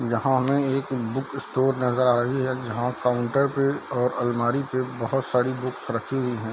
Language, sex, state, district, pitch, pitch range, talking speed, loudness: Hindi, male, Bihar, Darbhanga, 130 Hz, 120-135 Hz, 195 wpm, -25 LUFS